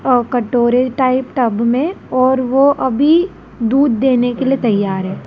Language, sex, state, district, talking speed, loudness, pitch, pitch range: Hindi, female, Madhya Pradesh, Dhar, 160 wpm, -15 LUFS, 255 Hz, 240-265 Hz